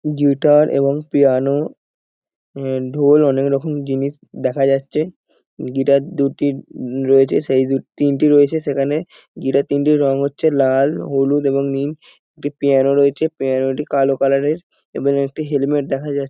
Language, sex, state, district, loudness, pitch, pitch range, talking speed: Bengali, male, West Bengal, North 24 Parganas, -17 LUFS, 140 Hz, 135-145 Hz, 145 wpm